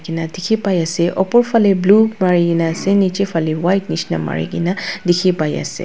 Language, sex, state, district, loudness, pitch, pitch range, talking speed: Nagamese, female, Nagaland, Dimapur, -16 LUFS, 180 Hz, 165-200 Hz, 185 wpm